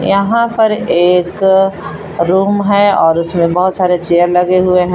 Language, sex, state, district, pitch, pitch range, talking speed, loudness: Hindi, female, Jharkhand, Palamu, 185 Hz, 175-200 Hz, 160 wpm, -12 LUFS